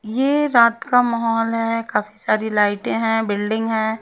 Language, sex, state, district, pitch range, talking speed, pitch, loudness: Hindi, female, Haryana, Rohtak, 220-235 Hz, 165 wpm, 225 Hz, -19 LUFS